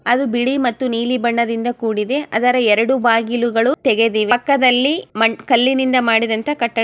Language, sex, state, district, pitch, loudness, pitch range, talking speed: Kannada, female, Karnataka, Chamarajanagar, 240 Hz, -16 LUFS, 230-260 Hz, 130 wpm